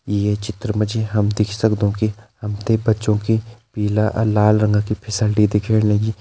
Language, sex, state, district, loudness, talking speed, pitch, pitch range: Kumaoni, male, Uttarakhand, Tehri Garhwal, -19 LUFS, 185 wpm, 105 Hz, 105-110 Hz